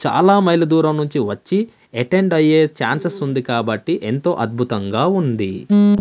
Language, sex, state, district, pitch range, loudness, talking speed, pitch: Telugu, male, Andhra Pradesh, Manyam, 120-180 Hz, -17 LUFS, 130 wpm, 155 Hz